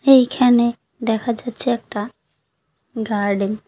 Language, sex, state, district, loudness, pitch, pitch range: Bengali, female, West Bengal, Cooch Behar, -19 LUFS, 225 Hz, 200-240 Hz